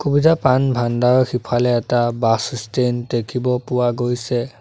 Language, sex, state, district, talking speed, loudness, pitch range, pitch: Assamese, male, Assam, Sonitpur, 130 wpm, -18 LUFS, 120-125 Hz, 125 Hz